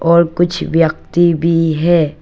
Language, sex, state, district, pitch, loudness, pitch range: Hindi, female, Arunachal Pradesh, Papum Pare, 170 Hz, -14 LUFS, 165-170 Hz